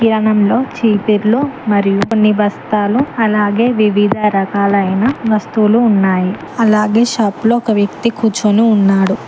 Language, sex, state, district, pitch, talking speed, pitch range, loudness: Telugu, female, Telangana, Mahabubabad, 215 Hz, 110 wpm, 205-225 Hz, -13 LUFS